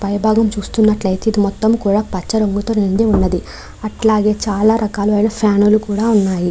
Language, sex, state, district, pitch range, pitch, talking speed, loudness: Telugu, female, Andhra Pradesh, Krishna, 200-220 Hz, 210 Hz, 150 wpm, -15 LUFS